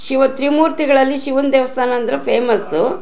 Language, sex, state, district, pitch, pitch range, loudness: Kannada, female, Karnataka, Shimoga, 270 Hz, 265-280 Hz, -15 LUFS